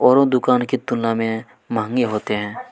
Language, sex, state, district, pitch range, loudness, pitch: Hindi, male, Chhattisgarh, Kabirdham, 110-130 Hz, -20 LUFS, 120 Hz